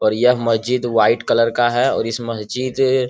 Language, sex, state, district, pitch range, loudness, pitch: Hindi, male, Bihar, Jamui, 115-125 Hz, -17 LUFS, 120 Hz